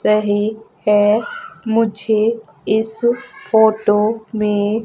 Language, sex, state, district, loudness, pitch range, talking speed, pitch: Hindi, female, Madhya Pradesh, Umaria, -17 LUFS, 210-230 Hz, 75 wpm, 220 Hz